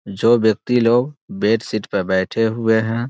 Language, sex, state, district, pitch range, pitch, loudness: Hindi, male, Bihar, Muzaffarpur, 110-120 Hz, 115 Hz, -18 LUFS